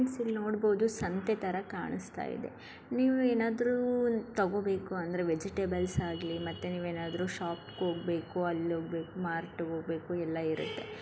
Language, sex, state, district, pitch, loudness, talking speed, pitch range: Kannada, female, Karnataka, Dharwad, 180 Hz, -34 LUFS, 135 wpm, 170-215 Hz